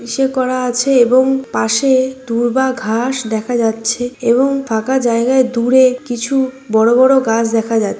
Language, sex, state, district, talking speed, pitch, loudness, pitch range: Bengali, female, West Bengal, Malda, 140 wpm, 250 Hz, -14 LUFS, 230-260 Hz